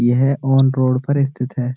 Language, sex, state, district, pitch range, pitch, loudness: Hindi, male, Uttarakhand, Uttarkashi, 125-135 Hz, 130 Hz, -17 LUFS